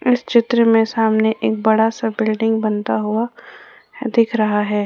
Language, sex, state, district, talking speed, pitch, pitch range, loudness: Hindi, female, Jharkhand, Ranchi, 160 wpm, 225 Hz, 215-230 Hz, -17 LUFS